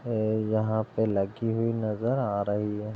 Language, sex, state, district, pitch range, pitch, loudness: Hindi, male, Uttar Pradesh, Gorakhpur, 105-115 Hz, 110 Hz, -28 LUFS